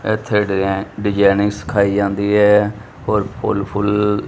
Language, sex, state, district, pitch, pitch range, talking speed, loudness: Punjabi, male, Punjab, Kapurthala, 105 Hz, 100-105 Hz, 110 wpm, -17 LUFS